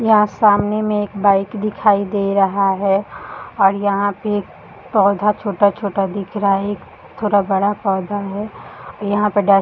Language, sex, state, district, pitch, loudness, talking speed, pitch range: Hindi, female, Chhattisgarh, Balrampur, 205 Hz, -17 LUFS, 170 wpm, 195-210 Hz